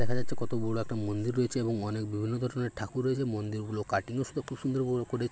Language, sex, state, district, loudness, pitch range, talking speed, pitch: Bengali, male, West Bengal, Paschim Medinipur, -32 LUFS, 110-125 Hz, 225 wpm, 120 Hz